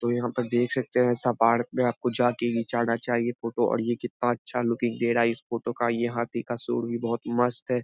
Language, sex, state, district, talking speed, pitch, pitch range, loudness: Hindi, male, Bihar, Lakhisarai, 270 wpm, 120 Hz, 115-120 Hz, -26 LUFS